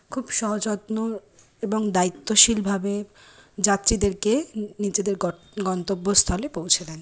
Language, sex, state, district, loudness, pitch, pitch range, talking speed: Bengali, female, West Bengal, Kolkata, -22 LUFS, 205 Hz, 195-220 Hz, 75 wpm